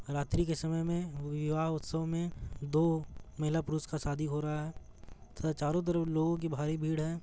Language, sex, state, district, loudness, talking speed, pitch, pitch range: Hindi, male, Bihar, Gaya, -34 LUFS, 190 wpm, 155 Hz, 150-160 Hz